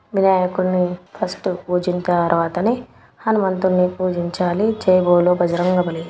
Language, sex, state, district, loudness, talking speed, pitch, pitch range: Telugu, female, Telangana, Nalgonda, -19 LUFS, 90 wpm, 180 Hz, 175-185 Hz